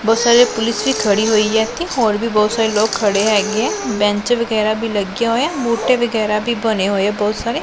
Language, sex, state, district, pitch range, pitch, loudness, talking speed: Punjabi, female, Punjab, Pathankot, 210-235 Hz, 220 Hz, -16 LUFS, 220 wpm